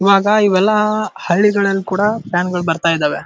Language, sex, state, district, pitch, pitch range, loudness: Kannada, male, Karnataka, Dharwad, 195 Hz, 180-210 Hz, -15 LUFS